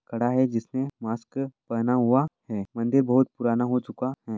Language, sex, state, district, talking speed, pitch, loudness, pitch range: Hindi, male, Rajasthan, Churu, 180 wpm, 125 Hz, -26 LUFS, 115-130 Hz